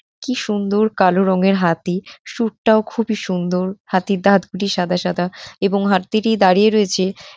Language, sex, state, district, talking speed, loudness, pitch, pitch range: Bengali, female, West Bengal, North 24 Parganas, 155 wpm, -18 LUFS, 195 Hz, 185-215 Hz